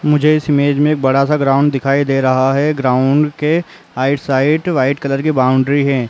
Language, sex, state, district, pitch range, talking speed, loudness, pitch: Hindi, male, Uttar Pradesh, Jalaun, 135-150 Hz, 205 wpm, -14 LUFS, 140 Hz